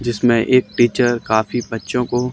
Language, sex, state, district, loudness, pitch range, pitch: Hindi, male, Haryana, Charkhi Dadri, -17 LUFS, 115-125 Hz, 120 Hz